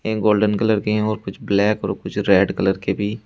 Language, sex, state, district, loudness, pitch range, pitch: Hindi, male, Uttar Pradesh, Shamli, -19 LUFS, 100-110 Hz, 105 Hz